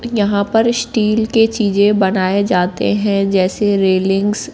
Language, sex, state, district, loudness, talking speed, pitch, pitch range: Hindi, female, Madhya Pradesh, Katni, -15 LUFS, 145 wpm, 205 Hz, 195-220 Hz